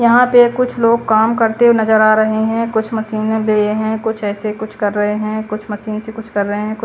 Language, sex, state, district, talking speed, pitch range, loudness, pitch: Hindi, female, Chandigarh, Chandigarh, 260 wpm, 215-225 Hz, -15 LUFS, 220 Hz